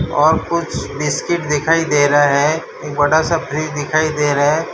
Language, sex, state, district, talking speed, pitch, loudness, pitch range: Hindi, male, Gujarat, Valsad, 190 wpm, 150 Hz, -16 LUFS, 145-160 Hz